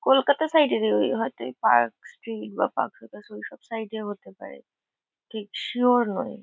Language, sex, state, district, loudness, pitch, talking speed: Bengali, female, West Bengal, Kolkata, -25 LUFS, 205 Hz, 180 wpm